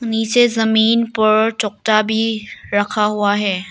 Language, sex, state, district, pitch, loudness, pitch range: Hindi, female, Arunachal Pradesh, Lower Dibang Valley, 220 Hz, -16 LUFS, 210-225 Hz